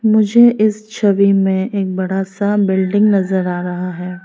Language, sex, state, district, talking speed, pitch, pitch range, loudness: Hindi, female, Arunachal Pradesh, Lower Dibang Valley, 170 wpm, 195 Hz, 190-210 Hz, -15 LUFS